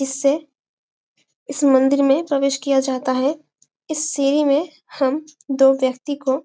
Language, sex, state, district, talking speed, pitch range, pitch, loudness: Hindi, female, Chhattisgarh, Bastar, 140 wpm, 270-295 Hz, 275 Hz, -19 LUFS